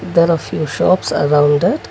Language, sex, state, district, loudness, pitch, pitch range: English, male, Karnataka, Bangalore, -15 LUFS, 155 Hz, 145-170 Hz